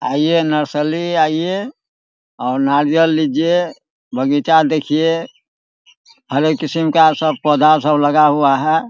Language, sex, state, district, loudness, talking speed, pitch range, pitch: Hindi, male, Bihar, Araria, -15 LUFS, 130 wpm, 145-165 Hz, 155 Hz